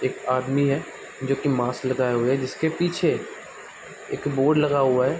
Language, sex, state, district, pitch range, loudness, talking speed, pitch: Hindi, male, Bihar, Sitamarhi, 130-145 Hz, -23 LUFS, 185 wpm, 135 Hz